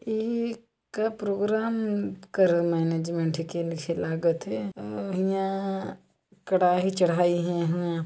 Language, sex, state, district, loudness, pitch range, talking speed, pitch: Hindi, female, Chhattisgarh, Jashpur, -27 LUFS, 170-200 Hz, 110 wpm, 180 Hz